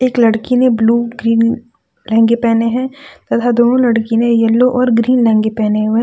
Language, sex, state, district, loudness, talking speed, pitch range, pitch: Hindi, female, Jharkhand, Deoghar, -13 LUFS, 170 wpm, 225-250 Hz, 235 Hz